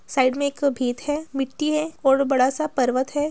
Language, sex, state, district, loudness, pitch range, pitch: Hindi, female, Bihar, Gaya, -22 LUFS, 260-300 Hz, 275 Hz